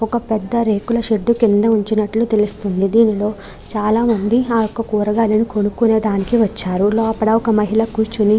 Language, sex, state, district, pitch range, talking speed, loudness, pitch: Telugu, female, Andhra Pradesh, Krishna, 210-230 Hz, 145 wpm, -16 LUFS, 220 Hz